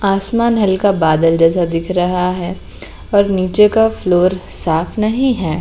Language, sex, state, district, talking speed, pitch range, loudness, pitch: Hindi, female, Bihar, Patna, 150 wpm, 175-210 Hz, -14 LUFS, 185 Hz